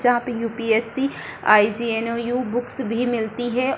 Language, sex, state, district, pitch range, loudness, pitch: Hindi, female, Bihar, Supaul, 225-245 Hz, -22 LUFS, 235 Hz